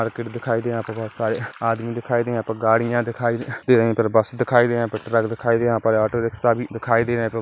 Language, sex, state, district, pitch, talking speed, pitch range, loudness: Hindi, male, Chhattisgarh, Kabirdham, 115 Hz, 275 wpm, 115-120 Hz, -21 LUFS